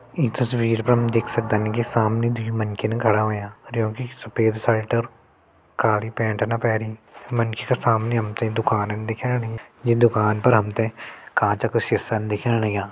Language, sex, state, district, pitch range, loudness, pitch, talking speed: Garhwali, male, Uttarakhand, Uttarkashi, 110-115 Hz, -22 LUFS, 115 Hz, 175 wpm